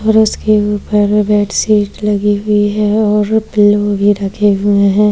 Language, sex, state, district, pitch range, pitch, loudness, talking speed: Hindi, female, Maharashtra, Chandrapur, 205-210 Hz, 210 Hz, -12 LUFS, 175 wpm